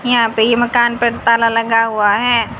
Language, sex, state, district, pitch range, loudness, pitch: Hindi, female, Haryana, Jhajjar, 225-240 Hz, -14 LUFS, 230 Hz